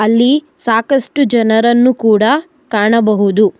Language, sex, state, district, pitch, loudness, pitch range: Kannada, female, Karnataka, Bangalore, 230 Hz, -12 LUFS, 215-275 Hz